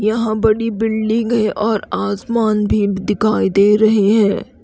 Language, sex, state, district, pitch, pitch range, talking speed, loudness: Hindi, female, Haryana, Rohtak, 215 Hz, 210-220 Hz, 140 wpm, -16 LUFS